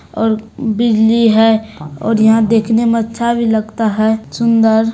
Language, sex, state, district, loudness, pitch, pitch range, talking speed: Hindi, female, Bihar, Supaul, -13 LUFS, 225 Hz, 220-230 Hz, 145 wpm